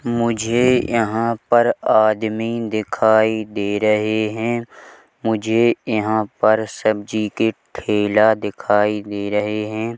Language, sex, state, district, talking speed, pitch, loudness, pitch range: Hindi, male, Chhattisgarh, Bilaspur, 110 wpm, 110 Hz, -18 LUFS, 105-115 Hz